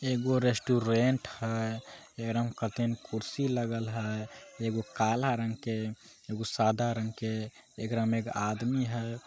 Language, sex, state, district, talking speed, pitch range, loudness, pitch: Magahi, male, Bihar, Jamui, 140 wpm, 110-120 Hz, -32 LUFS, 115 Hz